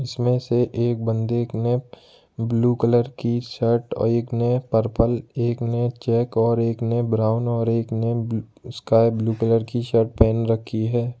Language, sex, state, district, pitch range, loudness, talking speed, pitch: Hindi, male, Jharkhand, Ranchi, 115-120 Hz, -22 LUFS, 165 wpm, 115 Hz